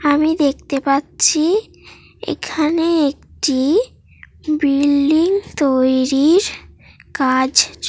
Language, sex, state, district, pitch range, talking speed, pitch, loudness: Bengali, female, West Bengal, Paschim Medinipur, 275-320 Hz, 55 wpm, 295 Hz, -16 LUFS